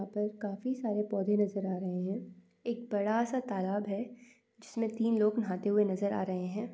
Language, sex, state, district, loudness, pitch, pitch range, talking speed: Hindi, female, Uttar Pradesh, Muzaffarnagar, -33 LUFS, 210 Hz, 195-230 Hz, 215 wpm